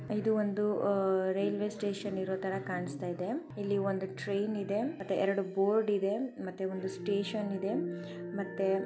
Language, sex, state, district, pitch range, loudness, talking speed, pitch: Kannada, female, Karnataka, Chamarajanagar, 190-205 Hz, -33 LUFS, 135 wpm, 195 Hz